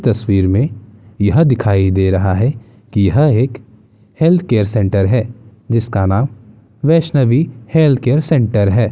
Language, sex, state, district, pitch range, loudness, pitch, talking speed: Hindi, male, Bihar, Gaya, 105-130 Hz, -14 LUFS, 115 Hz, 140 wpm